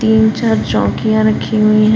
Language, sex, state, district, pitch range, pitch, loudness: Hindi, female, Jharkhand, Palamu, 215-220 Hz, 220 Hz, -13 LUFS